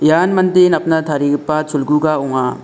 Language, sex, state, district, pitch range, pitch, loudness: Garo, male, Meghalaya, South Garo Hills, 145-165 Hz, 155 Hz, -14 LUFS